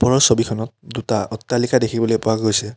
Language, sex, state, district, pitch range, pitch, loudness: Assamese, male, Assam, Kamrup Metropolitan, 110-120 Hz, 115 Hz, -19 LUFS